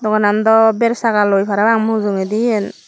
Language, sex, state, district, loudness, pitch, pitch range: Chakma, female, Tripura, Dhalai, -14 LUFS, 215 Hz, 205-225 Hz